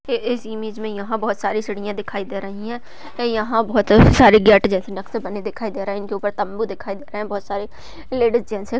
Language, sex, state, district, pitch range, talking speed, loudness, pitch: Hindi, female, Uttar Pradesh, Budaun, 200-230 Hz, 225 wpm, -19 LUFS, 210 Hz